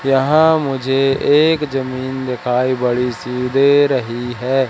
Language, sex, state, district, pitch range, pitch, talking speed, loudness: Hindi, male, Madhya Pradesh, Katni, 125-140 Hz, 130 Hz, 125 wpm, -16 LUFS